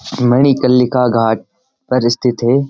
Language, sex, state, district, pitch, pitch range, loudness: Hindi, male, Uttarakhand, Uttarkashi, 125 Hz, 120-130 Hz, -13 LUFS